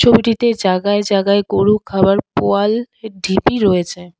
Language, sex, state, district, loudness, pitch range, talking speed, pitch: Bengali, female, West Bengal, Alipurduar, -15 LUFS, 190-220 Hz, 115 wpm, 200 Hz